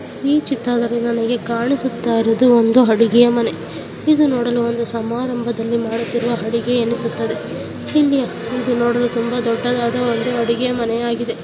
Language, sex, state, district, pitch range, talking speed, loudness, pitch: Kannada, female, Karnataka, Bellary, 235-245 Hz, 115 wpm, -18 LUFS, 235 Hz